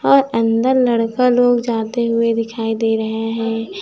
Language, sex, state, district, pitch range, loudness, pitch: Hindi, female, Chhattisgarh, Raipur, 225-245 Hz, -17 LUFS, 230 Hz